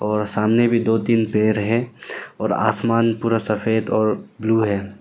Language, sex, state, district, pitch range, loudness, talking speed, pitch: Hindi, male, Arunachal Pradesh, Lower Dibang Valley, 105-115 Hz, -19 LUFS, 170 wpm, 110 Hz